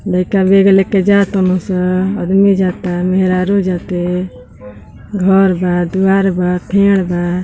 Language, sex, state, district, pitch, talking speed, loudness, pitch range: Bhojpuri, female, Uttar Pradesh, Ghazipur, 185 Hz, 130 wpm, -13 LUFS, 180-195 Hz